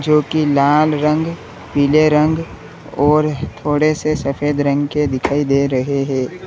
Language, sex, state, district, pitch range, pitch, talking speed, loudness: Hindi, male, Uttar Pradesh, Lalitpur, 140-155 Hz, 150 Hz, 150 wpm, -16 LUFS